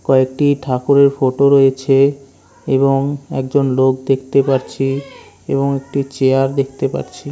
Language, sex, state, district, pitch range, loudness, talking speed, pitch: Bengali, male, West Bengal, Kolkata, 135-140 Hz, -15 LUFS, 115 wpm, 135 Hz